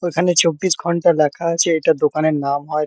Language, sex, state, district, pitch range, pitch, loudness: Bengali, male, West Bengal, Kolkata, 150-170 Hz, 165 Hz, -17 LUFS